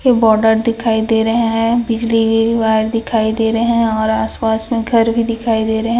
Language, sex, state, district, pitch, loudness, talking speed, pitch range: Hindi, female, Chhattisgarh, Raipur, 225 Hz, -15 LUFS, 190 wpm, 220-230 Hz